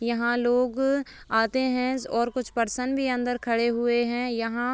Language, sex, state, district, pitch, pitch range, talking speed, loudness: Hindi, female, Bihar, Begusarai, 245 Hz, 235-255 Hz, 165 wpm, -26 LUFS